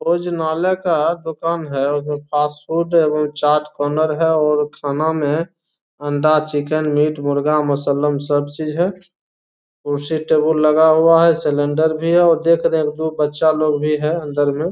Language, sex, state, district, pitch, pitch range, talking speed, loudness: Hindi, male, Bihar, Begusarai, 155 Hz, 145-160 Hz, 165 wpm, -17 LUFS